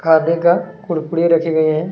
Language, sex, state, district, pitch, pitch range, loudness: Hindi, male, Chhattisgarh, Kabirdham, 165 Hz, 160-170 Hz, -16 LUFS